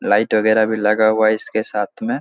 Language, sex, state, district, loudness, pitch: Hindi, male, Bihar, Supaul, -17 LUFS, 110 Hz